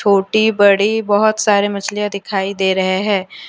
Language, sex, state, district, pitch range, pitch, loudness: Hindi, female, Jharkhand, Deoghar, 195-210 Hz, 205 Hz, -15 LUFS